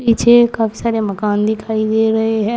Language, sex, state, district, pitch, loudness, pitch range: Hindi, female, Uttar Pradesh, Saharanpur, 220 Hz, -15 LUFS, 215-230 Hz